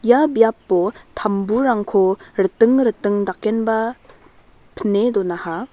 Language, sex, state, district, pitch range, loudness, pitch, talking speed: Garo, female, Meghalaya, West Garo Hills, 195-230 Hz, -18 LUFS, 215 Hz, 85 wpm